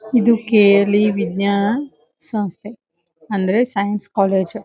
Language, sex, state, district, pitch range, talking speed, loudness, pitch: Kannada, female, Karnataka, Dharwad, 200-220 Hz, 105 wpm, -17 LUFS, 205 Hz